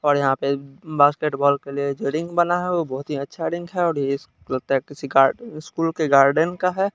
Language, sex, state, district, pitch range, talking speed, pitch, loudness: Hindi, male, Bihar, Kaimur, 140-170 Hz, 240 wpm, 145 Hz, -21 LUFS